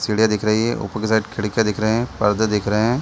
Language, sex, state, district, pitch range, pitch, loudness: Hindi, male, Bihar, Sitamarhi, 105-110 Hz, 110 Hz, -20 LUFS